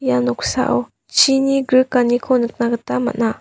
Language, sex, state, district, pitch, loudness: Garo, female, Meghalaya, West Garo Hills, 235 Hz, -17 LUFS